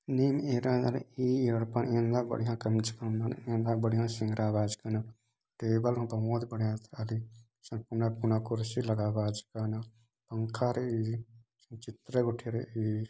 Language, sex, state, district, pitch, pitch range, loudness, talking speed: Sadri, male, Chhattisgarh, Jashpur, 115 Hz, 110-120 Hz, -32 LUFS, 130 wpm